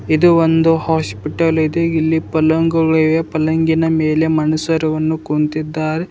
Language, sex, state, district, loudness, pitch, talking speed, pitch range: Kannada, male, Karnataka, Bidar, -15 LUFS, 160 Hz, 110 wpm, 155-165 Hz